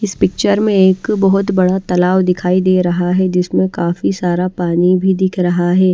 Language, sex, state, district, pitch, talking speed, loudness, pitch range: Hindi, female, Haryana, Charkhi Dadri, 185 Hz, 190 wpm, -14 LUFS, 180-190 Hz